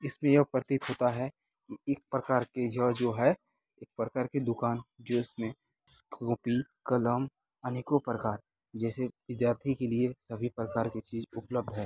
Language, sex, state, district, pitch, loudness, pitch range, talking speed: Hindi, male, Bihar, Muzaffarpur, 120 Hz, -32 LUFS, 115-130 Hz, 160 wpm